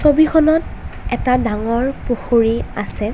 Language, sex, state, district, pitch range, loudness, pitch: Assamese, female, Assam, Kamrup Metropolitan, 230-300 Hz, -17 LUFS, 250 Hz